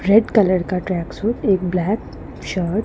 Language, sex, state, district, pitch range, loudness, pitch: Hindi, female, Punjab, Pathankot, 180-215 Hz, -19 LUFS, 190 Hz